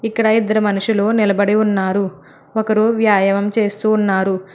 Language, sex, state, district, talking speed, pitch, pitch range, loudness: Telugu, female, Telangana, Hyderabad, 120 wpm, 210 Hz, 195-220 Hz, -16 LUFS